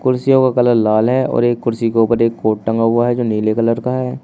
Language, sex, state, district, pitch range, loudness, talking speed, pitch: Hindi, male, Uttar Pradesh, Shamli, 115-125 Hz, -15 LUFS, 285 wpm, 115 Hz